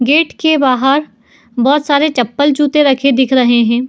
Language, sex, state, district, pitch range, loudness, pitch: Hindi, female, Uttar Pradesh, Etah, 245-295 Hz, -12 LUFS, 275 Hz